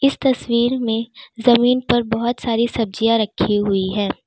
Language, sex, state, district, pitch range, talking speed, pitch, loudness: Hindi, female, Uttar Pradesh, Lalitpur, 225-245 Hz, 155 wpm, 235 Hz, -18 LUFS